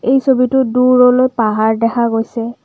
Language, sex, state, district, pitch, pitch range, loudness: Assamese, female, Assam, Kamrup Metropolitan, 245 Hz, 230-255 Hz, -13 LUFS